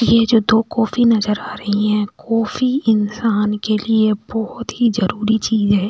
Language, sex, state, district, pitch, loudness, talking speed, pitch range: Hindi, female, Delhi, New Delhi, 220 Hz, -17 LUFS, 175 wpm, 210-230 Hz